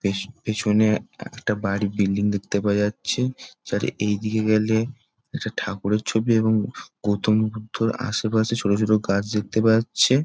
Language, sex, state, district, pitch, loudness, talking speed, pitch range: Bengali, male, West Bengal, Jalpaiguri, 110 Hz, -23 LUFS, 160 wpm, 105-110 Hz